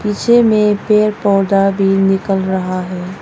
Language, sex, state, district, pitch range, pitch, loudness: Hindi, female, Arunachal Pradesh, Longding, 190-210 Hz, 195 Hz, -14 LUFS